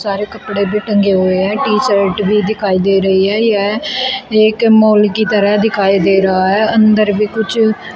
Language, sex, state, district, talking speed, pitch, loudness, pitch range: Hindi, female, Uttar Pradesh, Shamli, 190 wpm, 210 Hz, -12 LUFS, 195-215 Hz